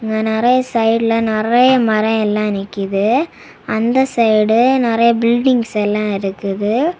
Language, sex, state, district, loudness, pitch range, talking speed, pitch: Tamil, female, Tamil Nadu, Kanyakumari, -15 LUFS, 215-240 Hz, 110 wpm, 225 Hz